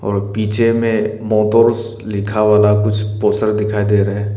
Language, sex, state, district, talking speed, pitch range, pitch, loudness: Hindi, male, Arunachal Pradesh, Papum Pare, 165 wpm, 105-110 Hz, 105 Hz, -15 LUFS